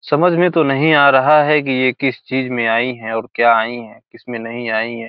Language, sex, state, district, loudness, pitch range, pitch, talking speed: Hindi, male, Bihar, Gopalganj, -15 LUFS, 115-145 Hz, 130 Hz, 260 wpm